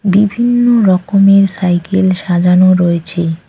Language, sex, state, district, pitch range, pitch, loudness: Bengali, female, West Bengal, Cooch Behar, 175-195 Hz, 185 Hz, -11 LUFS